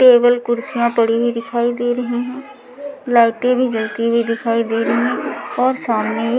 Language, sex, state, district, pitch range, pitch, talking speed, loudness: Hindi, female, Maharashtra, Mumbai Suburban, 230-250 Hz, 240 Hz, 170 wpm, -17 LUFS